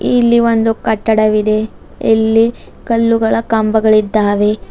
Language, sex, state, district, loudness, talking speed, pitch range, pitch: Kannada, female, Karnataka, Bidar, -13 LUFS, 75 wpm, 215-230 Hz, 220 Hz